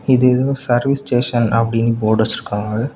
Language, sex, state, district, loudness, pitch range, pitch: Tamil, male, Tamil Nadu, Kanyakumari, -16 LUFS, 115-130 Hz, 120 Hz